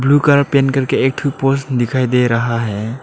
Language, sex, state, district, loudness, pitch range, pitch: Hindi, male, Arunachal Pradesh, Lower Dibang Valley, -15 LUFS, 120-140 Hz, 135 Hz